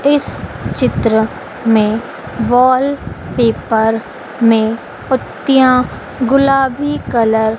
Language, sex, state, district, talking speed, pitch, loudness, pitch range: Hindi, female, Madhya Pradesh, Dhar, 70 wpm, 240 Hz, -14 LUFS, 225-270 Hz